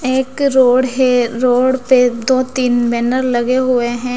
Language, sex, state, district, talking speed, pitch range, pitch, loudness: Hindi, female, Bihar, West Champaran, 160 wpm, 245-260 Hz, 255 Hz, -14 LUFS